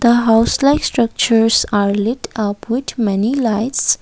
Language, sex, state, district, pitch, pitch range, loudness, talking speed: English, female, Assam, Kamrup Metropolitan, 230 Hz, 215-240 Hz, -15 LUFS, 135 wpm